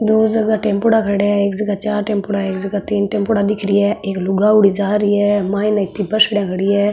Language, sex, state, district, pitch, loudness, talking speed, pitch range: Marwari, female, Rajasthan, Nagaur, 205 Hz, -16 LUFS, 225 wpm, 200-210 Hz